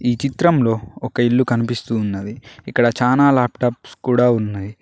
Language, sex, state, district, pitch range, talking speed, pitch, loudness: Telugu, male, Telangana, Mahabubabad, 115-125 Hz, 135 wpm, 120 Hz, -18 LUFS